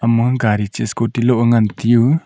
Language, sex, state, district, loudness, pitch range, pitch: Wancho, male, Arunachal Pradesh, Longding, -16 LUFS, 115-120 Hz, 115 Hz